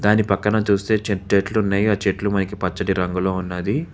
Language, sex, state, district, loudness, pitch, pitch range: Telugu, male, Telangana, Hyderabad, -20 LUFS, 100 Hz, 95-105 Hz